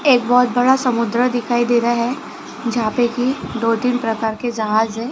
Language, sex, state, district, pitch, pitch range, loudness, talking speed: Hindi, female, Maharashtra, Gondia, 240 Hz, 230-250 Hz, -18 LUFS, 200 wpm